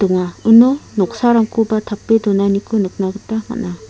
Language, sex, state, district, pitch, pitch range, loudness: Garo, female, Meghalaya, South Garo Hills, 215 Hz, 195-225 Hz, -15 LUFS